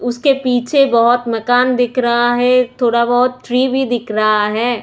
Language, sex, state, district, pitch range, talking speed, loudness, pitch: Hindi, female, Chhattisgarh, Sukma, 235-250 Hz, 175 wpm, -14 LUFS, 245 Hz